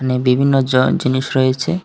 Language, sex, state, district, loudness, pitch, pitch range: Bengali, male, Tripura, West Tripura, -15 LUFS, 130 Hz, 130-135 Hz